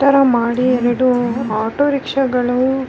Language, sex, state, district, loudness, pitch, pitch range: Kannada, female, Karnataka, Raichur, -16 LUFS, 255 Hz, 240-270 Hz